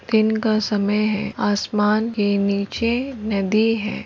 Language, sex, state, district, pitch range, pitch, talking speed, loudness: Hindi, female, Maharashtra, Solapur, 205-220 Hz, 215 Hz, 135 wpm, -20 LUFS